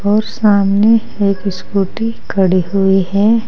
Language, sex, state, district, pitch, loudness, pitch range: Hindi, female, Uttar Pradesh, Saharanpur, 200 Hz, -14 LUFS, 195-220 Hz